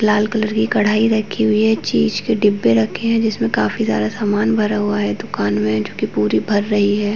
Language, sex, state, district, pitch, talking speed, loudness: Hindi, female, Uttarakhand, Tehri Garhwal, 205 Hz, 225 wpm, -17 LUFS